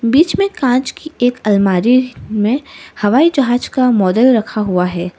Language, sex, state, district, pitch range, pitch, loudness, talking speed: Hindi, female, Arunachal Pradesh, Lower Dibang Valley, 210-255 Hz, 245 Hz, -14 LUFS, 160 wpm